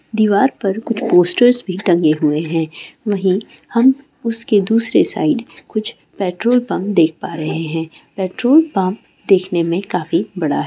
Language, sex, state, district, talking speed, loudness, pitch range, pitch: Hindi, female, Andhra Pradesh, Guntur, 150 wpm, -16 LUFS, 170-230 Hz, 195 Hz